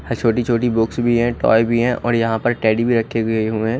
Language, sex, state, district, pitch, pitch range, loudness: Hindi, male, Odisha, Khordha, 115 Hz, 115-120 Hz, -18 LUFS